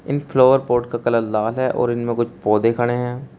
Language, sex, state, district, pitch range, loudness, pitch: Hindi, male, Uttar Pradesh, Shamli, 115-130 Hz, -19 LUFS, 120 Hz